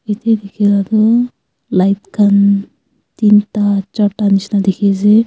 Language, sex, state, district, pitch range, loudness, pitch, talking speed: Nagamese, female, Nagaland, Kohima, 200-215 Hz, -13 LUFS, 205 Hz, 125 wpm